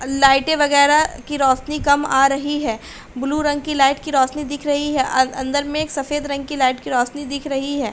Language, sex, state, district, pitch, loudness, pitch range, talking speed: Hindi, female, Uttar Pradesh, Hamirpur, 285 Hz, -18 LUFS, 270-295 Hz, 235 wpm